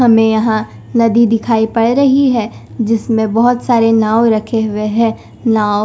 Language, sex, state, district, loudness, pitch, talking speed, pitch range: Hindi, female, Punjab, Kapurthala, -13 LUFS, 225 Hz, 155 wpm, 220-235 Hz